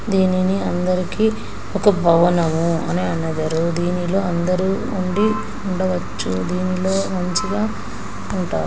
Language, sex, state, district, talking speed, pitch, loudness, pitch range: Telugu, female, Andhra Pradesh, Anantapur, 90 wpm, 180 Hz, -20 LUFS, 165-190 Hz